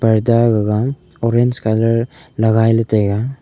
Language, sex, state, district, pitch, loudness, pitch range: Wancho, male, Arunachal Pradesh, Longding, 115 Hz, -16 LUFS, 110-125 Hz